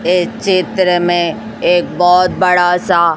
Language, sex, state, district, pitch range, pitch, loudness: Hindi, female, Chhattisgarh, Raipur, 175-185 Hz, 180 Hz, -13 LUFS